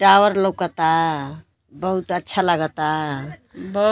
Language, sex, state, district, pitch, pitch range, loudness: Bhojpuri, female, Uttar Pradesh, Gorakhpur, 170 Hz, 155-190 Hz, -20 LUFS